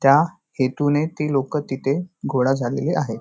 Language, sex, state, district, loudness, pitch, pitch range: Marathi, male, Maharashtra, Nagpur, -22 LUFS, 140 Hz, 130-150 Hz